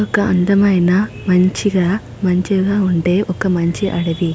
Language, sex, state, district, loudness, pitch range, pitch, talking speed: Telugu, female, Andhra Pradesh, Srikakulam, -16 LUFS, 180-200 Hz, 185 Hz, 110 wpm